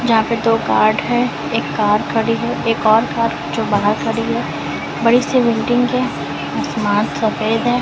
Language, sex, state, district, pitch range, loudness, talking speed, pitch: Hindi, female, Chhattisgarh, Raipur, 225-245 Hz, -17 LUFS, 175 wpm, 230 Hz